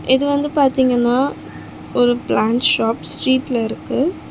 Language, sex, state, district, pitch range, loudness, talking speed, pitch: Tamil, female, Tamil Nadu, Chennai, 240-275 Hz, -17 LUFS, 110 wpm, 260 Hz